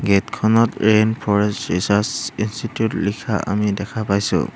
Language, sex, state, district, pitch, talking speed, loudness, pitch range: Assamese, male, Assam, Hailakandi, 105 Hz, 130 wpm, -19 LUFS, 100-110 Hz